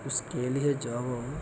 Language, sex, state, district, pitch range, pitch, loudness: Hindi, male, Maharashtra, Solapur, 125-140 Hz, 125 Hz, -31 LUFS